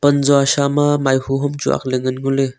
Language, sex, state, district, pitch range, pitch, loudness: Wancho, male, Arunachal Pradesh, Longding, 135-145 Hz, 140 Hz, -17 LUFS